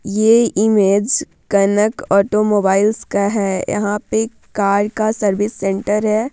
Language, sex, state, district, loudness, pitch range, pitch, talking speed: Hindi, female, Bihar, Vaishali, -16 LUFS, 200-215 Hz, 210 Hz, 125 wpm